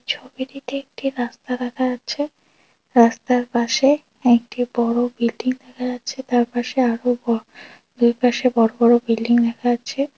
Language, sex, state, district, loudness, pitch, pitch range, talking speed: Bengali, female, West Bengal, Dakshin Dinajpur, -20 LUFS, 245 Hz, 235-260 Hz, 135 wpm